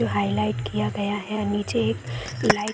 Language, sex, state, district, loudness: Hindi, female, Bihar, Saran, -25 LUFS